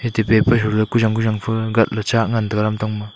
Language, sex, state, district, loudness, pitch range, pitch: Wancho, male, Arunachal Pradesh, Longding, -18 LUFS, 110-115 Hz, 110 Hz